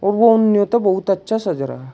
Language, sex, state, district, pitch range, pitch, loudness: Hindi, male, Uttar Pradesh, Shamli, 190-220 Hz, 200 Hz, -16 LUFS